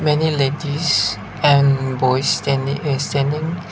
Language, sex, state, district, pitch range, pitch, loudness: English, male, Nagaland, Dimapur, 135-150 Hz, 140 Hz, -18 LUFS